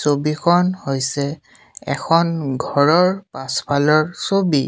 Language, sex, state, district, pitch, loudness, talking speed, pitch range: Assamese, male, Assam, Sonitpur, 150 Hz, -18 LUFS, 75 wpm, 140-175 Hz